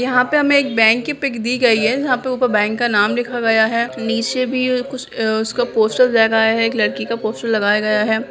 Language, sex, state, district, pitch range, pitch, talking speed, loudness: Hindi, female, Bihar, Bhagalpur, 220-255 Hz, 235 Hz, 245 wpm, -16 LUFS